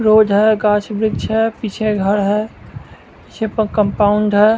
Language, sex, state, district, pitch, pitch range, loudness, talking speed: Hindi, male, Bihar, West Champaran, 215 Hz, 205-220 Hz, -16 LUFS, 160 wpm